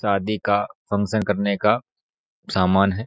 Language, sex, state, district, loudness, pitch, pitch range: Hindi, male, Uttar Pradesh, Budaun, -22 LUFS, 100 Hz, 100-105 Hz